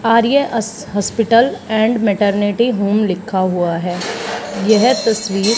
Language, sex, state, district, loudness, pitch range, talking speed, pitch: Hindi, female, Haryana, Charkhi Dadri, -16 LUFS, 200-230 Hz, 120 wpm, 220 Hz